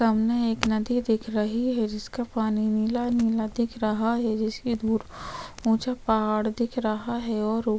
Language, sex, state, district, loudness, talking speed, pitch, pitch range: Hindi, female, Chhattisgarh, Korba, -26 LUFS, 160 wpm, 225 Hz, 220-235 Hz